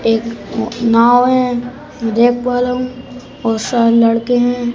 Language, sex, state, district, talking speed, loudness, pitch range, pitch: Hindi, male, Madhya Pradesh, Bhopal, 140 wpm, -14 LUFS, 230-250 Hz, 245 Hz